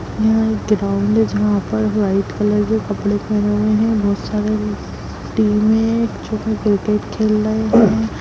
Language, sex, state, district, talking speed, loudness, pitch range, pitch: Hindi, female, Bihar, Lakhisarai, 155 wpm, -17 LUFS, 210-220 Hz, 215 Hz